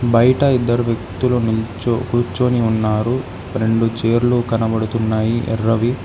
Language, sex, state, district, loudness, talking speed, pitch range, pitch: Telugu, male, Telangana, Hyderabad, -17 LUFS, 100 wpm, 110-120 Hz, 115 Hz